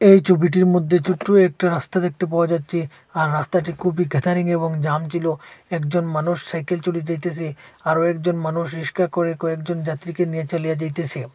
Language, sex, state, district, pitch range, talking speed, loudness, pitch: Bengali, male, Assam, Hailakandi, 160-180 Hz, 160 wpm, -21 LUFS, 170 Hz